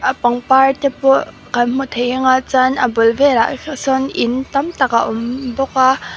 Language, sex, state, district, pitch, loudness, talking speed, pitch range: Mizo, female, Mizoram, Aizawl, 260 Hz, -15 LUFS, 185 wpm, 245-270 Hz